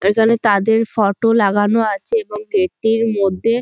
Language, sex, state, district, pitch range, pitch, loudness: Bengali, female, West Bengal, Dakshin Dinajpur, 205-230 Hz, 225 Hz, -16 LUFS